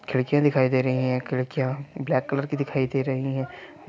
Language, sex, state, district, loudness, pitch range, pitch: Hindi, male, Jharkhand, Sahebganj, -25 LUFS, 130-140 Hz, 135 Hz